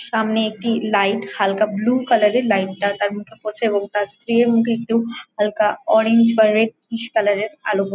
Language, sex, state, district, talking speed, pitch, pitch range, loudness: Bengali, female, West Bengal, Jhargram, 205 wpm, 220 Hz, 205-230 Hz, -19 LUFS